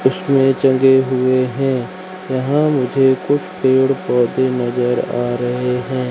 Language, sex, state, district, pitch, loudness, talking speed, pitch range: Hindi, male, Madhya Pradesh, Katni, 130 Hz, -16 LUFS, 130 wpm, 125-135 Hz